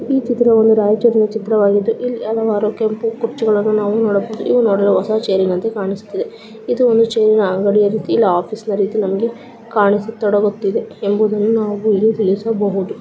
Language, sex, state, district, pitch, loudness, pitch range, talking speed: Kannada, male, Karnataka, Raichur, 215 Hz, -16 LUFS, 205-225 Hz, 150 wpm